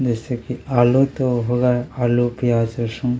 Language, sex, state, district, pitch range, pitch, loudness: Hindi, male, Chhattisgarh, Kabirdham, 120-125 Hz, 120 Hz, -19 LUFS